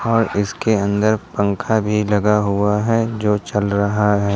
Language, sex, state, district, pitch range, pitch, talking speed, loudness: Hindi, male, Jharkhand, Ranchi, 100-110 Hz, 105 Hz, 165 wpm, -18 LUFS